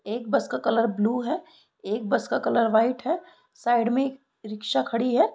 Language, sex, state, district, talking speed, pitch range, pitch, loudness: Hindi, female, Bihar, East Champaran, 200 wpm, 220-275 Hz, 240 Hz, -25 LUFS